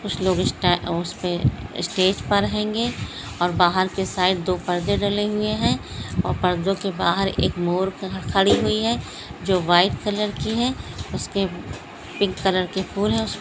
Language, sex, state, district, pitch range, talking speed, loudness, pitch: Hindi, female, Bihar, Jamui, 180-205 Hz, 155 wpm, -22 LUFS, 190 Hz